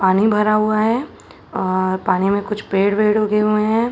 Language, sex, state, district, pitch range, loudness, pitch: Hindi, female, Uttar Pradesh, Jalaun, 195-215 Hz, -17 LUFS, 210 Hz